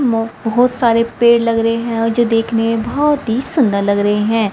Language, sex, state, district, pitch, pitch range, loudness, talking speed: Hindi, female, Haryana, Rohtak, 230 Hz, 225-240 Hz, -15 LUFS, 210 wpm